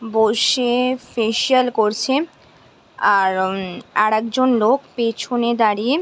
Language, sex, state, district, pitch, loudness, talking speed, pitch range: Bengali, female, West Bengal, Jhargram, 230 Hz, -18 LUFS, 90 wpm, 215-255 Hz